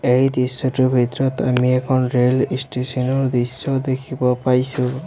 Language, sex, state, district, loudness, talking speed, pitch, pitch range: Assamese, male, Assam, Sonitpur, -19 LUFS, 130 wpm, 130 Hz, 125-135 Hz